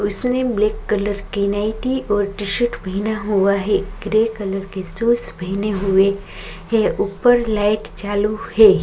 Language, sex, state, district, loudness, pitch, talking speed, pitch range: Hindi, female, Uttarakhand, Tehri Garhwal, -19 LUFS, 205 Hz, 145 wpm, 200-220 Hz